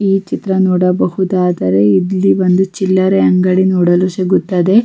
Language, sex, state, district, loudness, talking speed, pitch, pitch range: Kannada, female, Karnataka, Raichur, -13 LUFS, 150 wpm, 185 Hz, 175-190 Hz